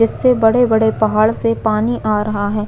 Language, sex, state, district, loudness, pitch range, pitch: Hindi, female, Chhattisgarh, Jashpur, -15 LUFS, 215-230 Hz, 220 Hz